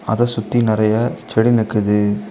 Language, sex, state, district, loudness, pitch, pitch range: Tamil, male, Tamil Nadu, Kanyakumari, -17 LUFS, 110 Hz, 105-115 Hz